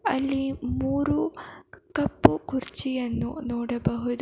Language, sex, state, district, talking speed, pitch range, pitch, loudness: Kannada, female, Karnataka, Bangalore, 70 wpm, 235-265 Hz, 245 Hz, -27 LUFS